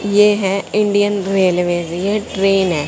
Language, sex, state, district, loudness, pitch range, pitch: Hindi, female, Haryana, Jhajjar, -16 LUFS, 180-205 Hz, 195 Hz